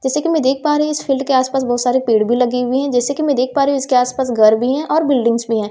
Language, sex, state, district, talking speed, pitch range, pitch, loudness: Hindi, female, Delhi, New Delhi, 355 wpm, 245-280 Hz, 260 Hz, -16 LUFS